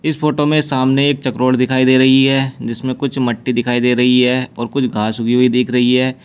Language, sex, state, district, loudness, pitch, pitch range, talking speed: Hindi, male, Uttar Pradesh, Shamli, -15 LUFS, 130 Hz, 125-135 Hz, 240 wpm